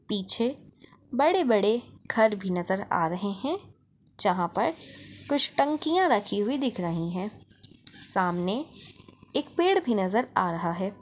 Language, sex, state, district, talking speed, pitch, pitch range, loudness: Hindi, female, Chhattisgarh, Bastar, 135 wpm, 215 Hz, 185-280 Hz, -27 LUFS